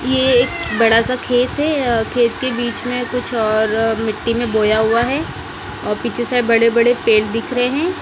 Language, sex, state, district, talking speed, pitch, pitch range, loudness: Hindi, female, Punjab, Kapurthala, 185 wpm, 240 Hz, 225-250 Hz, -16 LUFS